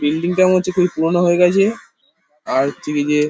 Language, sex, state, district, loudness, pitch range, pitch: Bengali, male, West Bengal, Paschim Medinipur, -16 LUFS, 150-185 Hz, 175 Hz